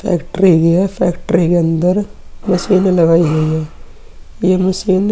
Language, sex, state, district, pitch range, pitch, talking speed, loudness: Hindi, male, Uttar Pradesh, Muzaffarnagar, 170-190 Hz, 180 Hz, 150 wpm, -14 LUFS